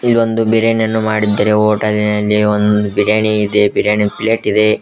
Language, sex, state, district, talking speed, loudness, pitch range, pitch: Kannada, male, Karnataka, Koppal, 125 wpm, -13 LUFS, 105-110 Hz, 105 Hz